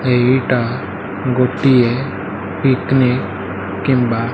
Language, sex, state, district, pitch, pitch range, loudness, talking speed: Odia, male, Odisha, Malkangiri, 120 Hz, 100-130 Hz, -16 LUFS, 70 wpm